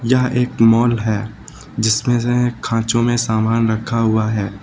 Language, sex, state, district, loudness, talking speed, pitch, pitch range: Hindi, male, Uttar Pradesh, Lucknow, -17 LUFS, 155 wpm, 115 Hz, 110-120 Hz